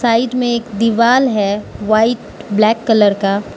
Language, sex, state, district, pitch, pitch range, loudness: Hindi, female, Mizoram, Aizawl, 225 Hz, 205-235 Hz, -14 LUFS